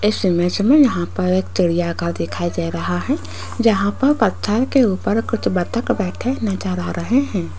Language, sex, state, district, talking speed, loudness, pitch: Hindi, female, Rajasthan, Jaipur, 190 wpm, -18 LUFS, 185 Hz